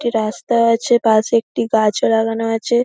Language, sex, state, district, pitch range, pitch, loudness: Bengali, female, West Bengal, North 24 Parganas, 220-235 Hz, 225 Hz, -16 LUFS